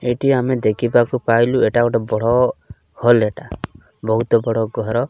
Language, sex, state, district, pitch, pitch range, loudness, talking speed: Odia, male, Odisha, Malkangiri, 120 Hz, 115-120 Hz, -17 LUFS, 155 wpm